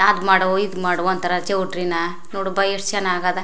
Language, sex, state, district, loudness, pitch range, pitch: Kannada, female, Karnataka, Chamarajanagar, -20 LUFS, 180-195 Hz, 185 Hz